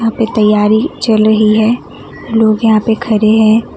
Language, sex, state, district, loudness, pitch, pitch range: Hindi, female, West Bengal, Alipurduar, -11 LUFS, 220 Hz, 215-225 Hz